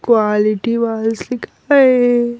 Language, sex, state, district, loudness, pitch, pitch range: Hindi, male, Bihar, Patna, -14 LUFS, 235 Hz, 220-245 Hz